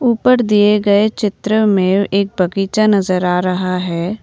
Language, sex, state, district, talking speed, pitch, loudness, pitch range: Hindi, female, Assam, Kamrup Metropolitan, 155 wpm, 200 Hz, -14 LUFS, 185-215 Hz